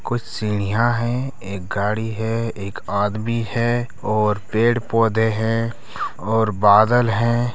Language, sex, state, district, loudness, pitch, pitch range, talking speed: Hindi, male, Bihar, Araria, -20 LUFS, 110 Hz, 105-115 Hz, 120 wpm